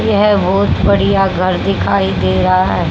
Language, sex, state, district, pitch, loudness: Hindi, female, Haryana, Rohtak, 100 Hz, -13 LUFS